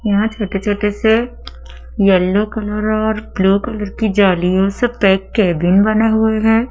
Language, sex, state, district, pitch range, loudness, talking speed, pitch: Hindi, female, Madhya Pradesh, Dhar, 190-220 Hz, -15 LUFS, 145 wpm, 210 Hz